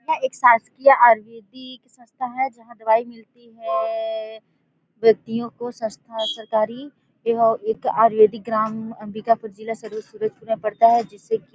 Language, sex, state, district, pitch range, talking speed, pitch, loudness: Hindi, female, Chhattisgarh, Sarguja, 220-240 Hz, 125 wpm, 225 Hz, -21 LUFS